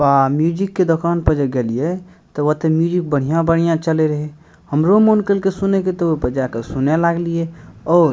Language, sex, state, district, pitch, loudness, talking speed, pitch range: Maithili, male, Bihar, Madhepura, 165 Hz, -17 LUFS, 185 wpm, 150-175 Hz